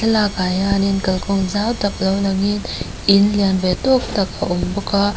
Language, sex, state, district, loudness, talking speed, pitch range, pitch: Mizo, female, Mizoram, Aizawl, -18 LUFS, 220 wpm, 190-205 Hz, 200 Hz